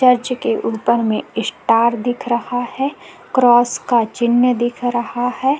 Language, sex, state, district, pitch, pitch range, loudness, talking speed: Hindi, female, Chhattisgarh, Korba, 245 Hz, 235-250 Hz, -17 LUFS, 150 wpm